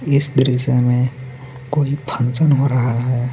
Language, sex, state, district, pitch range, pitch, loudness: Hindi, male, Jharkhand, Garhwa, 125-140 Hz, 130 Hz, -17 LUFS